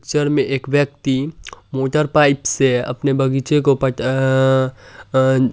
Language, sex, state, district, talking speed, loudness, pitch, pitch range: Hindi, male, Bihar, Supaul, 150 wpm, -17 LUFS, 135 Hz, 130-140 Hz